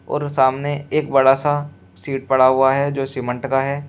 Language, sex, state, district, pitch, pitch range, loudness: Hindi, male, Uttar Pradesh, Shamli, 135 Hz, 135-145 Hz, -18 LUFS